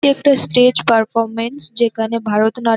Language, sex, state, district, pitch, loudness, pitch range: Bengali, female, West Bengal, North 24 Parganas, 230 Hz, -14 LUFS, 225-250 Hz